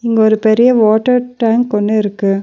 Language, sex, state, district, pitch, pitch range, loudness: Tamil, female, Tamil Nadu, Nilgiris, 220 Hz, 215-240 Hz, -12 LUFS